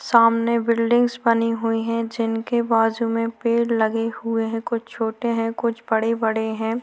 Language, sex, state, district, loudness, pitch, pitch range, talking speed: Hindi, female, Maharashtra, Chandrapur, -21 LUFS, 230 Hz, 225-235 Hz, 165 wpm